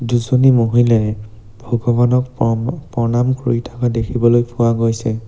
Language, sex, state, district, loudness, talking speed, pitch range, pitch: Assamese, male, Assam, Sonitpur, -16 LUFS, 115 wpm, 115-120 Hz, 120 Hz